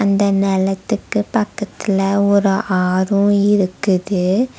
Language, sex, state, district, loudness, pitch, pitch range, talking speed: Tamil, female, Tamil Nadu, Nilgiris, -17 LUFS, 200 Hz, 190-205 Hz, 80 wpm